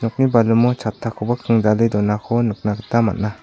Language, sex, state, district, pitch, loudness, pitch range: Garo, male, Meghalaya, South Garo Hills, 115 Hz, -18 LUFS, 105-115 Hz